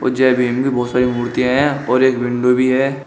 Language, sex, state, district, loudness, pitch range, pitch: Hindi, male, Uttar Pradesh, Shamli, -16 LUFS, 125-130 Hz, 125 Hz